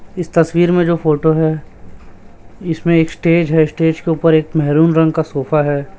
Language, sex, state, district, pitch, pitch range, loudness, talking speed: Hindi, male, Chhattisgarh, Raipur, 160 Hz, 145-165 Hz, -14 LUFS, 180 wpm